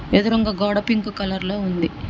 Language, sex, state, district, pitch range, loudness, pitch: Telugu, female, Telangana, Mahabubabad, 190-215 Hz, -21 LUFS, 205 Hz